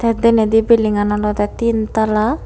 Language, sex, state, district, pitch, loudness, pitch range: Chakma, female, Tripura, Unakoti, 220 Hz, -15 LUFS, 210-230 Hz